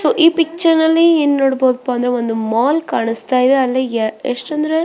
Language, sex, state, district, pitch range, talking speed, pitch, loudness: Kannada, female, Karnataka, Belgaum, 245-320 Hz, 185 wpm, 265 Hz, -15 LUFS